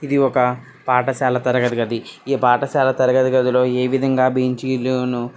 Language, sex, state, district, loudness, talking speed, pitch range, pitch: Telugu, male, Telangana, Karimnagar, -18 LUFS, 145 wpm, 125-130 Hz, 130 Hz